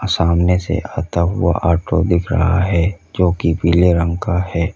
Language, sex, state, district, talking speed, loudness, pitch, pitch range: Hindi, male, Uttar Pradesh, Lalitpur, 175 wpm, -16 LUFS, 85 Hz, 85-90 Hz